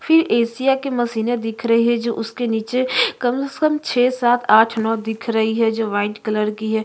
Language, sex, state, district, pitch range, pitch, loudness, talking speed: Hindi, female, Chhattisgarh, Korba, 220-250 Hz, 230 Hz, -19 LUFS, 220 wpm